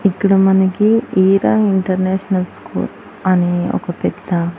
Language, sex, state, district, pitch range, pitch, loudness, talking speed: Telugu, female, Andhra Pradesh, Annamaya, 180-195 Hz, 190 Hz, -15 LUFS, 115 wpm